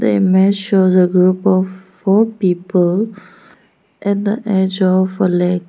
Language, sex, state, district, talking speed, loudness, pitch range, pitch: English, female, Arunachal Pradesh, Lower Dibang Valley, 150 wpm, -15 LUFS, 185-200 Hz, 190 Hz